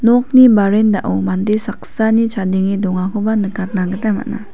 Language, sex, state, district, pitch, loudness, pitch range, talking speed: Garo, female, Meghalaya, West Garo Hills, 210 Hz, -15 LUFS, 190-220 Hz, 120 wpm